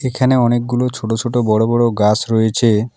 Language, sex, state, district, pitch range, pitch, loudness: Bengali, male, West Bengal, Alipurduar, 110-120 Hz, 120 Hz, -15 LUFS